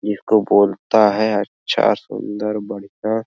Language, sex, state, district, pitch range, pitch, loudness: Hindi, male, Bihar, Araria, 100-110 Hz, 105 Hz, -18 LUFS